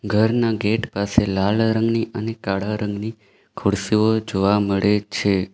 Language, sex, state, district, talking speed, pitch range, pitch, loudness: Gujarati, male, Gujarat, Valsad, 130 wpm, 100-110 Hz, 105 Hz, -20 LUFS